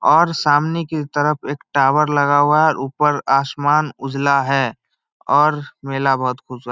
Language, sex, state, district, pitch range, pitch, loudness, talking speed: Hindi, male, Bihar, Samastipur, 135-150 Hz, 145 Hz, -17 LUFS, 160 wpm